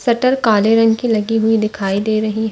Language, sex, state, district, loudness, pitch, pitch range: Hindi, female, Chhattisgarh, Bastar, -15 LUFS, 220 Hz, 215-225 Hz